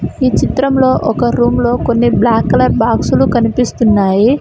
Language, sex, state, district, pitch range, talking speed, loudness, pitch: Telugu, female, Telangana, Mahabubabad, 225-260 Hz, 135 wpm, -12 LUFS, 245 Hz